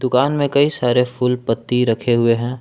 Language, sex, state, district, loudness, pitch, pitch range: Hindi, male, Jharkhand, Palamu, -17 LUFS, 125 Hz, 120-130 Hz